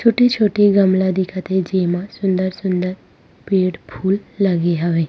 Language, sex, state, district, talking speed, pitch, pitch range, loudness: Chhattisgarhi, female, Chhattisgarh, Rajnandgaon, 105 wpm, 190 Hz, 180-200 Hz, -18 LUFS